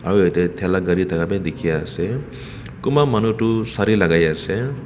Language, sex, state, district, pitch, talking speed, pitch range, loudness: Nagamese, male, Nagaland, Kohima, 105 Hz, 160 wpm, 90-120 Hz, -19 LUFS